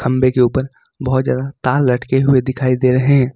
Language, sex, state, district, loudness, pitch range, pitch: Hindi, male, Jharkhand, Ranchi, -16 LUFS, 125-135 Hz, 130 Hz